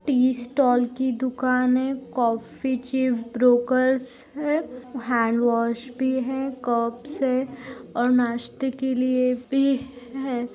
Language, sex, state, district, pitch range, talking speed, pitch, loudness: Hindi, female, Maharashtra, Aurangabad, 245-265 Hz, 115 wpm, 255 Hz, -23 LUFS